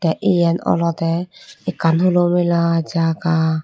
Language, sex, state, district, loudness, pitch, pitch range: Chakma, female, Tripura, Dhalai, -18 LUFS, 170 Hz, 165-175 Hz